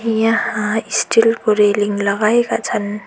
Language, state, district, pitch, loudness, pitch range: Nepali, West Bengal, Darjeeling, 215 Hz, -16 LUFS, 205-225 Hz